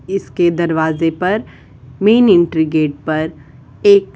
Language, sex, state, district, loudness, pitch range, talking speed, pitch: Hindi, female, Uttar Pradesh, Varanasi, -15 LUFS, 145-185 Hz, 130 wpm, 160 Hz